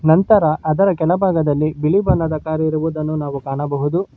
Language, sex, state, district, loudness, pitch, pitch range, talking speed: Kannada, male, Karnataka, Bangalore, -17 LUFS, 155 Hz, 150-170 Hz, 130 wpm